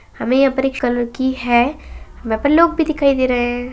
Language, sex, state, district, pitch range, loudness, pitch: Kumaoni, male, Uttarakhand, Uttarkashi, 245-275 Hz, -16 LUFS, 260 Hz